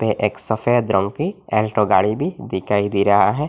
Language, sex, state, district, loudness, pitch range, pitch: Hindi, male, Assam, Hailakandi, -19 LUFS, 100-120 Hz, 105 Hz